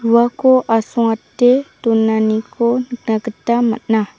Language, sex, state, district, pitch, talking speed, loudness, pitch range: Garo, female, Meghalaya, South Garo Hills, 235 Hz, 85 wpm, -16 LUFS, 220-245 Hz